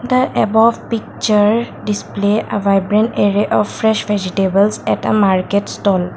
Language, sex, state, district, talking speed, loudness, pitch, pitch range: English, female, Assam, Kamrup Metropolitan, 135 wpm, -15 LUFS, 210 Hz, 200-220 Hz